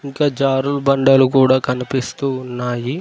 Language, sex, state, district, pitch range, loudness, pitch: Telugu, male, Telangana, Mahabubabad, 130-140 Hz, -17 LUFS, 135 Hz